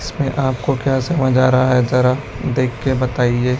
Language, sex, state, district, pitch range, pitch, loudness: Hindi, male, Chhattisgarh, Raipur, 125-135 Hz, 130 Hz, -17 LUFS